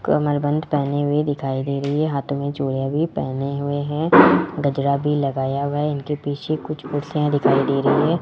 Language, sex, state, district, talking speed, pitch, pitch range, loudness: Hindi, male, Rajasthan, Jaipur, 205 wpm, 145 Hz, 140-150 Hz, -20 LUFS